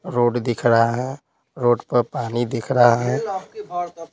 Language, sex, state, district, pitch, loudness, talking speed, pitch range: Hindi, male, Bihar, Patna, 120 Hz, -20 LUFS, 145 wpm, 120-160 Hz